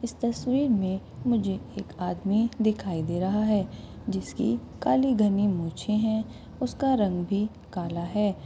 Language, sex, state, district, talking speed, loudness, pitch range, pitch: Hindi, female, Rajasthan, Churu, 130 wpm, -27 LUFS, 190-230 Hz, 205 Hz